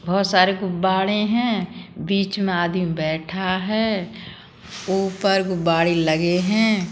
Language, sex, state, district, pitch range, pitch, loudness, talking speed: Bundeli, female, Uttar Pradesh, Budaun, 175-200 Hz, 190 Hz, -20 LUFS, 115 wpm